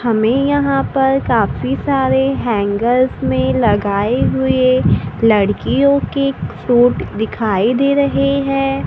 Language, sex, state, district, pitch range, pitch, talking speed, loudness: Hindi, female, Maharashtra, Gondia, 200-275 Hz, 240 Hz, 110 wpm, -15 LUFS